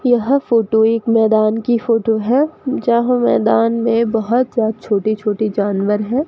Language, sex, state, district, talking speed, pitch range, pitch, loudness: Hindi, female, Rajasthan, Bikaner, 155 wpm, 220-240 Hz, 230 Hz, -16 LUFS